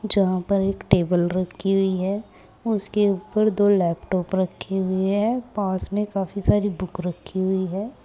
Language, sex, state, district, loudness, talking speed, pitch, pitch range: Hindi, female, Uttar Pradesh, Saharanpur, -23 LUFS, 165 wpm, 195 Hz, 185-205 Hz